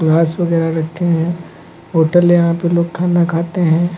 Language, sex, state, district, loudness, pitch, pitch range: Hindi, male, Uttar Pradesh, Lucknow, -15 LUFS, 170 Hz, 165-175 Hz